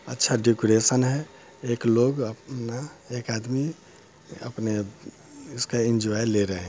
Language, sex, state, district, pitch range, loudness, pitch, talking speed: Hindi, male, Bihar, Muzaffarpur, 110-130 Hz, -25 LUFS, 120 Hz, 125 wpm